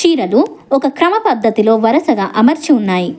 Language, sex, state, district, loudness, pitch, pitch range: Telugu, female, Telangana, Hyderabad, -13 LUFS, 275 Hz, 225-320 Hz